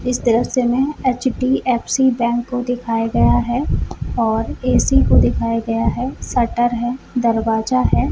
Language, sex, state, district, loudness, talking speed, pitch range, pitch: Hindi, female, Jharkhand, Sahebganj, -18 LUFS, 140 wpm, 230-255 Hz, 240 Hz